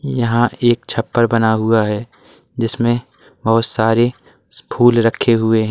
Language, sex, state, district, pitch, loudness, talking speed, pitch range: Hindi, male, Uttar Pradesh, Lalitpur, 115 Hz, -16 LUFS, 135 wpm, 110-120 Hz